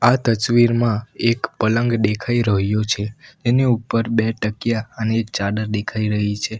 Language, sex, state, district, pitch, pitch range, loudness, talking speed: Gujarati, male, Gujarat, Valsad, 110 Hz, 105-120 Hz, -20 LUFS, 145 wpm